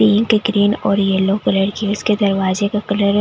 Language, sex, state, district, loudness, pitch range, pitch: Hindi, female, Delhi, New Delhi, -16 LUFS, 200-210 Hz, 205 Hz